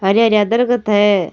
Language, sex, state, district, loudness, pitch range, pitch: Rajasthani, female, Rajasthan, Nagaur, -14 LUFS, 205-230 Hz, 210 Hz